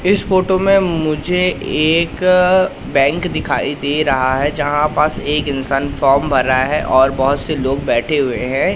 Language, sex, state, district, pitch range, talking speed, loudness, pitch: Hindi, male, Madhya Pradesh, Katni, 135-180 Hz, 165 wpm, -15 LUFS, 150 Hz